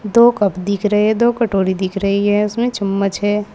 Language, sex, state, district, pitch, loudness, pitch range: Hindi, female, Uttar Pradesh, Saharanpur, 205 Hz, -16 LUFS, 195-220 Hz